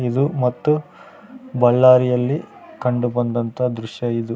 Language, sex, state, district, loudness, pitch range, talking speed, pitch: Kannada, male, Karnataka, Raichur, -19 LUFS, 120-135 Hz, 95 wpm, 125 Hz